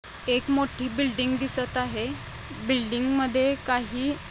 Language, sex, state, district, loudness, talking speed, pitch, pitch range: Marathi, female, Maharashtra, Chandrapur, -26 LUFS, 125 wpm, 255 Hz, 250-270 Hz